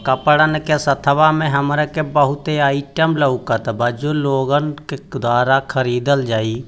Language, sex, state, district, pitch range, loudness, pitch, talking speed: Hindi, male, Bihar, Gopalganj, 130-150 Hz, -17 LUFS, 140 Hz, 180 wpm